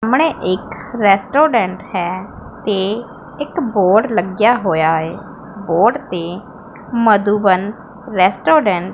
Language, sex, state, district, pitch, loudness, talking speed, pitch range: Punjabi, female, Punjab, Pathankot, 205 Hz, -16 LUFS, 100 wpm, 185-235 Hz